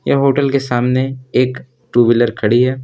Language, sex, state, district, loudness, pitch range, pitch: Hindi, male, Jharkhand, Deoghar, -15 LUFS, 120-130 Hz, 125 Hz